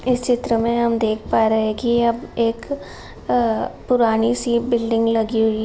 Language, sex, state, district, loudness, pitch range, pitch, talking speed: Hindi, female, Uttar Pradesh, Jalaun, -19 LUFS, 225-240 Hz, 230 Hz, 190 wpm